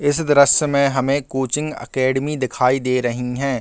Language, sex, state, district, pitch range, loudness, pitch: Hindi, male, Bihar, Gaya, 130-145 Hz, -18 LUFS, 135 Hz